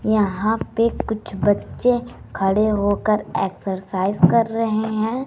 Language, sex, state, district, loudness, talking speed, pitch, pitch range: Hindi, female, Bihar, West Champaran, -20 LUFS, 115 wpm, 215 Hz, 195-225 Hz